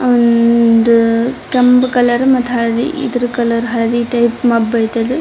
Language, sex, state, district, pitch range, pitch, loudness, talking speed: Kannada, female, Karnataka, Dharwad, 230-250 Hz, 235 Hz, -13 LUFS, 125 wpm